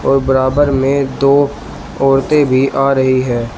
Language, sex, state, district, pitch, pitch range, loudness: Hindi, male, Uttar Pradesh, Shamli, 135 Hz, 130-140 Hz, -13 LUFS